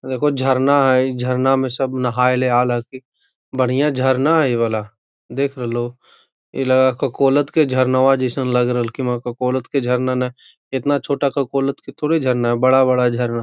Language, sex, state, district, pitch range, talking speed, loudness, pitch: Magahi, male, Bihar, Gaya, 125-135 Hz, 145 wpm, -18 LUFS, 130 Hz